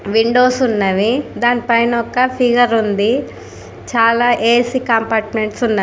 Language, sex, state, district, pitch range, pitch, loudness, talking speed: Telugu, female, Telangana, Karimnagar, 220-245 Hz, 235 Hz, -15 LUFS, 105 wpm